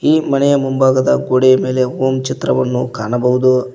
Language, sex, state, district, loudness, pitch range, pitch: Kannada, male, Karnataka, Koppal, -14 LUFS, 125-130 Hz, 130 Hz